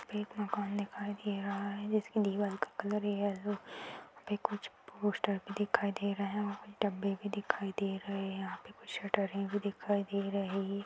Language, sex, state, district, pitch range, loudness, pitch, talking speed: Hindi, female, Uttar Pradesh, Muzaffarnagar, 200-205 Hz, -36 LUFS, 205 Hz, 205 wpm